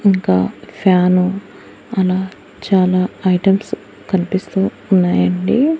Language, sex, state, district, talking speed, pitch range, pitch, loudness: Telugu, female, Andhra Pradesh, Annamaya, 70 wpm, 180-195 Hz, 185 Hz, -16 LUFS